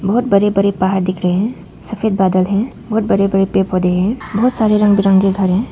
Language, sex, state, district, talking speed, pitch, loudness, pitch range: Hindi, female, Arunachal Pradesh, Papum Pare, 230 wpm, 200 Hz, -15 LUFS, 190-215 Hz